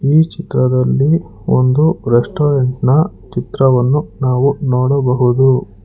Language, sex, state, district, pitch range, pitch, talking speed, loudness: Kannada, male, Karnataka, Bangalore, 125-145 Hz, 135 Hz, 80 wpm, -14 LUFS